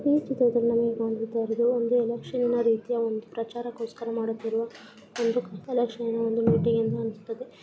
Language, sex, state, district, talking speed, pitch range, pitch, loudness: Kannada, female, Karnataka, Belgaum, 135 wpm, 225-240 Hz, 230 Hz, -27 LUFS